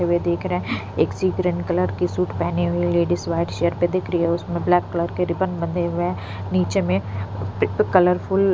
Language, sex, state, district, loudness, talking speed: Hindi, female, Punjab, Pathankot, -22 LUFS, 210 wpm